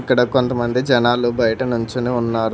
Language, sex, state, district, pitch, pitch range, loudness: Telugu, male, Telangana, Hyderabad, 120 Hz, 120-125 Hz, -18 LUFS